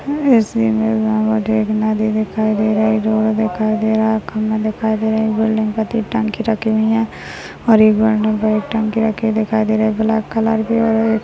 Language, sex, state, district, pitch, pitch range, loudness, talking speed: Hindi, male, Maharashtra, Nagpur, 220 Hz, 215-225 Hz, -16 LUFS, 225 wpm